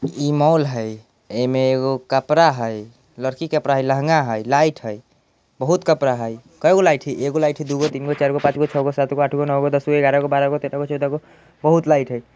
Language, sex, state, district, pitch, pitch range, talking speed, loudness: Bajjika, male, Bihar, Vaishali, 140 Hz, 130-150 Hz, 245 wpm, -19 LUFS